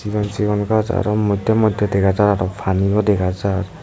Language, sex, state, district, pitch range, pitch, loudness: Chakma, male, Tripura, Dhalai, 95-105 Hz, 105 Hz, -18 LUFS